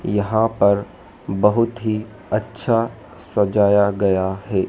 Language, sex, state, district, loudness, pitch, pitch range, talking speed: Hindi, male, Madhya Pradesh, Dhar, -19 LUFS, 105 Hz, 100-110 Hz, 100 wpm